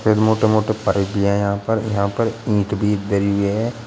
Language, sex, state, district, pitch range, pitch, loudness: Hindi, male, Uttar Pradesh, Shamli, 100-110 Hz, 105 Hz, -19 LUFS